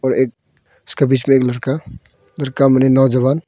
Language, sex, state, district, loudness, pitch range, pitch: Hindi, female, Arunachal Pradesh, Longding, -15 LUFS, 130-135 Hz, 135 Hz